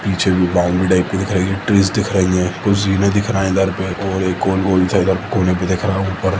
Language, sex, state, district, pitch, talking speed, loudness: Hindi, male, Chhattisgarh, Sukma, 95 Hz, 250 wpm, -16 LUFS